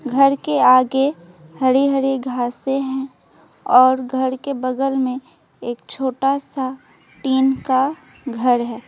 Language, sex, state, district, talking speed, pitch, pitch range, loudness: Hindi, female, West Bengal, Alipurduar, 130 wpm, 265 Hz, 255-270 Hz, -18 LUFS